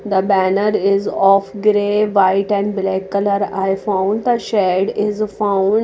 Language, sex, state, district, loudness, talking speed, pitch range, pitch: English, female, Odisha, Nuapada, -16 LUFS, 165 wpm, 195-210 Hz, 200 Hz